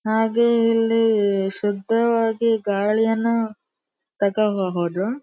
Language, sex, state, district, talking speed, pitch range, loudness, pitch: Kannada, female, Karnataka, Dharwad, 55 wpm, 200-230 Hz, -20 LUFS, 220 Hz